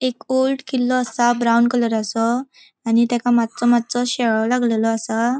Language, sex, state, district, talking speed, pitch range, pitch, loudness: Konkani, female, Goa, North and South Goa, 145 wpm, 230-250 Hz, 240 Hz, -19 LUFS